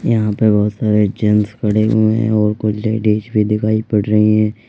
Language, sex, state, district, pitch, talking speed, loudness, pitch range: Hindi, male, Uttar Pradesh, Lalitpur, 110 Hz, 205 wpm, -15 LUFS, 105-110 Hz